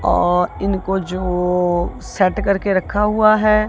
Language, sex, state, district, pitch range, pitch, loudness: Hindi, female, Punjab, Kapurthala, 180-205 Hz, 190 Hz, -17 LUFS